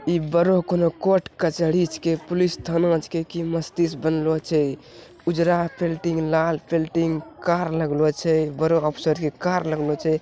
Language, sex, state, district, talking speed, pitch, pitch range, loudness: Angika, male, Bihar, Bhagalpur, 165 wpm, 165 Hz, 155-170 Hz, -22 LUFS